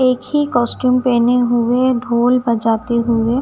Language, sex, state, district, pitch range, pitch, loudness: Hindi, female, Punjab, Kapurthala, 235-250 Hz, 245 Hz, -15 LUFS